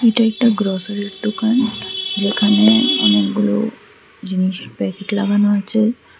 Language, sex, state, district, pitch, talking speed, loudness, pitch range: Bengali, female, Tripura, West Tripura, 205 Hz, 95 wpm, -17 LUFS, 190-220 Hz